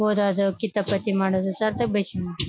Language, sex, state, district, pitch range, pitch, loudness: Kannada, female, Karnataka, Bellary, 190-210 Hz, 200 Hz, -24 LUFS